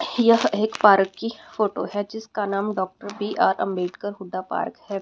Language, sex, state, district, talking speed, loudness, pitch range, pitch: Hindi, female, Haryana, Rohtak, 165 wpm, -23 LUFS, 195-215 Hz, 205 Hz